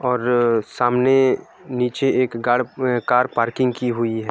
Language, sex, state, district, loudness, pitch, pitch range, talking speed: Hindi, male, Jharkhand, Sahebganj, -19 LUFS, 125 Hz, 120-130 Hz, 165 wpm